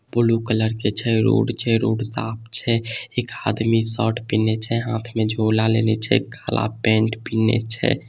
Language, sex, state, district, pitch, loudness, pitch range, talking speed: Maithili, male, Bihar, Samastipur, 115 Hz, -20 LUFS, 110-115 Hz, 180 wpm